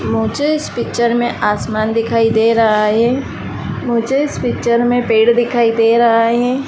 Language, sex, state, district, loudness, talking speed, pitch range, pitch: Hindi, female, Madhya Pradesh, Dhar, -14 LUFS, 160 wpm, 225-240 Hz, 235 Hz